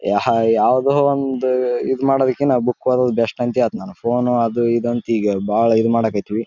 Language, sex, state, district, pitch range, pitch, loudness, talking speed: Kannada, male, Karnataka, Raichur, 115-130 Hz, 120 Hz, -18 LUFS, 165 wpm